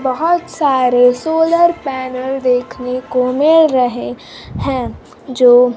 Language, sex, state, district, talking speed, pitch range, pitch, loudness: Hindi, female, Bihar, Kaimur, 105 wpm, 250-310 Hz, 255 Hz, -14 LUFS